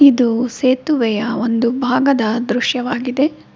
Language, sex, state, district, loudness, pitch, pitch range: Kannada, female, Karnataka, Bangalore, -16 LUFS, 250 Hz, 235-260 Hz